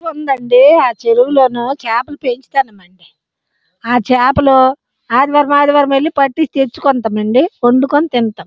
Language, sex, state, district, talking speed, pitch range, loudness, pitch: Telugu, female, Andhra Pradesh, Srikakulam, 115 wpm, 240-285 Hz, -12 LUFS, 265 Hz